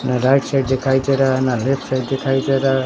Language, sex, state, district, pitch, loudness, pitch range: Hindi, male, Bihar, Katihar, 135 Hz, -18 LUFS, 130-135 Hz